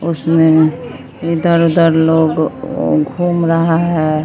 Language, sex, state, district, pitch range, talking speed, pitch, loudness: Hindi, female, Bihar, Patna, 155-170 Hz, 100 wpm, 165 Hz, -13 LUFS